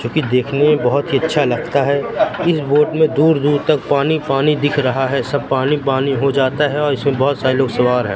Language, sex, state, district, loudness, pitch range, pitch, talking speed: Hindi, male, Madhya Pradesh, Katni, -16 LUFS, 135-150 Hz, 140 Hz, 220 wpm